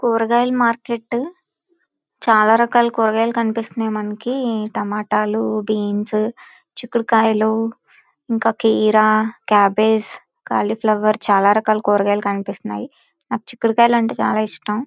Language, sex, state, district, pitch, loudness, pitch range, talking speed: Telugu, female, Andhra Pradesh, Visakhapatnam, 220 Hz, -18 LUFS, 215-235 Hz, 105 wpm